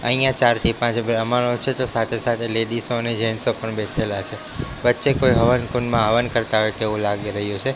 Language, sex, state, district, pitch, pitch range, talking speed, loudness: Gujarati, male, Gujarat, Gandhinagar, 115 Hz, 110-120 Hz, 195 wpm, -20 LUFS